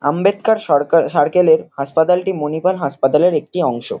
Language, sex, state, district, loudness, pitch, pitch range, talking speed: Bengali, male, West Bengal, Kolkata, -16 LUFS, 165 Hz, 145-190 Hz, 135 wpm